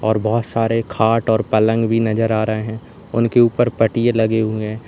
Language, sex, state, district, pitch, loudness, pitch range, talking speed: Hindi, male, Uttar Pradesh, Lalitpur, 115 Hz, -17 LUFS, 110-115 Hz, 210 wpm